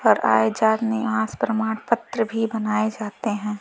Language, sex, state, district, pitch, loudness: Hindi, female, Uttar Pradesh, Lalitpur, 215 Hz, -22 LUFS